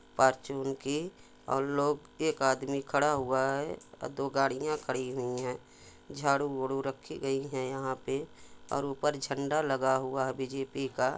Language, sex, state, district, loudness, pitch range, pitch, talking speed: Hindi, male, Jharkhand, Sahebganj, -32 LUFS, 130-140 Hz, 135 Hz, 160 wpm